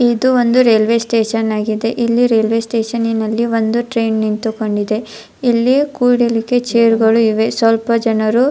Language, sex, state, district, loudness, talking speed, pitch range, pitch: Kannada, female, Karnataka, Dharwad, -14 LUFS, 135 wpm, 220-240 Hz, 230 Hz